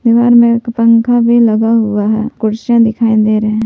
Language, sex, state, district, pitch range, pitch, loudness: Hindi, female, Jharkhand, Palamu, 220-235 Hz, 230 Hz, -11 LUFS